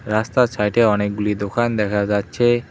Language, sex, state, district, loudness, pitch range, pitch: Bengali, male, West Bengal, Cooch Behar, -19 LUFS, 105-120 Hz, 105 Hz